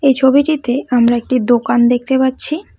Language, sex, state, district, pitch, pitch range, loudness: Bengali, female, West Bengal, Cooch Behar, 260 Hz, 240-275 Hz, -14 LUFS